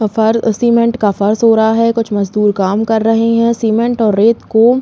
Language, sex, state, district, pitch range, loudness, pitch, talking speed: Hindi, female, Uttar Pradesh, Jalaun, 215-230 Hz, -12 LUFS, 225 Hz, 225 wpm